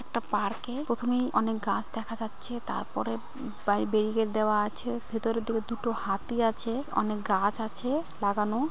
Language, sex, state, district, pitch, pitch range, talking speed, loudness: Bengali, female, West Bengal, Kolkata, 225 Hz, 215-240 Hz, 140 wpm, -30 LUFS